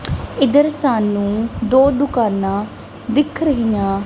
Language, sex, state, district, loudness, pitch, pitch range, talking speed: Punjabi, female, Punjab, Kapurthala, -17 LUFS, 230 Hz, 205-280 Hz, 90 wpm